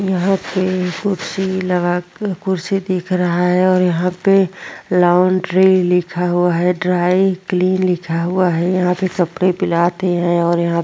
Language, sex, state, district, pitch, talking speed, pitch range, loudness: Hindi, female, Chhattisgarh, Korba, 180 Hz, 175 wpm, 175-185 Hz, -16 LUFS